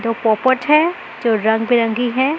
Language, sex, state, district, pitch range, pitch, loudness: Hindi, female, Maharashtra, Mumbai Suburban, 225-265 Hz, 240 Hz, -16 LUFS